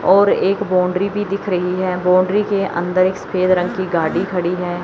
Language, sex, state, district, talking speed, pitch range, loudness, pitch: Hindi, male, Chandigarh, Chandigarh, 210 wpm, 180-195 Hz, -17 LUFS, 185 Hz